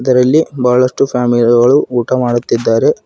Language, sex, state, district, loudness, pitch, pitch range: Kannada, male, Karnataka, Bidar, -12 LUFS, 125 Hz, 120-125 Hz